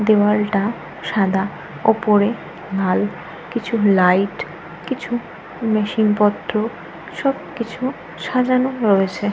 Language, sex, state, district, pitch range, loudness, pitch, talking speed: Bengali, female, Jharkhand, Jamtara, 195-230 Hz, -19 LUFS, 210 Hz, 70 wpm